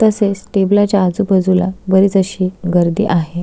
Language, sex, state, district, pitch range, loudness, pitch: Marathi, female, Maharashtra, Solapur, 185-200 Hz, -14 LUFS, 190 Hz